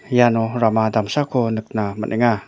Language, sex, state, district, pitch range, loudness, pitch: Garo, male, Meghalaya, West Garo Hills, 110-120 Hz, -19 LUFS, 115 Hz